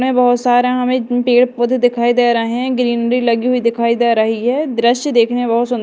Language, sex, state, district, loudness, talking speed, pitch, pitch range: Hindi, female, Madhya Pradesh, Dhar, -14 LUFS, 225 wpm, 245 Hz, 235-250 Hz